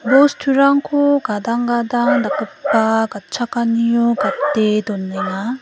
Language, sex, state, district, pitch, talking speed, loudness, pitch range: Garo, female, Meghalaya, West Garo Hills, 235 Hz, 75 wpm, -17 LUFS, 215-270 Hz